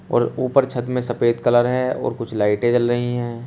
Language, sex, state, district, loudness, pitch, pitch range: Hindi, male, Uttar Pradesh, Shamli, -20 LUFS, 120 Hz, 120-125 Hz